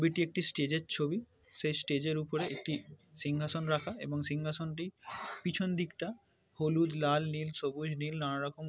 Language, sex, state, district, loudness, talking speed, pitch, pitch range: Bengali, male, West Bengal, Paschim Medinipur, -35 LUFS, 160 wpm, 155 Hz, 150-165 Hz